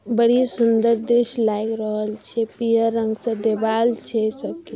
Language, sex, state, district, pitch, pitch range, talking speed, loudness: Maithili, female, Bihar, Darbhanga, 230 Hz, 220-235 Hz, 150 wpm, -21 LUFS